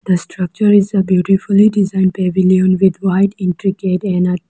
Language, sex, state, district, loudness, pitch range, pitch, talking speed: English, female, Arunachal Pradesh, Lower Dibang Valley, -14 LUFS, 185-195 Hz, 190 Hz, 185 wpm